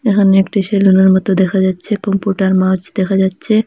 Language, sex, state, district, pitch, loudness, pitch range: Bengali, female, Assam, Hailakandi, 195 Hz, -13 LUFS, 190-200 Hz